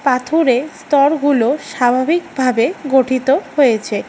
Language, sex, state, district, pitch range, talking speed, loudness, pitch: Bengali, female, West Bengal, Alipurduar, 250-295 Hz, 75 wpm, -15 LUFS, 270 Hz